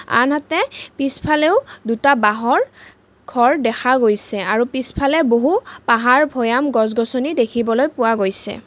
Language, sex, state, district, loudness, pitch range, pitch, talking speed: Assamese, female, Assam, Kamrup Metropolitan, -17 LUFS, 230-280 Hz, 250 Hz, 120 wpm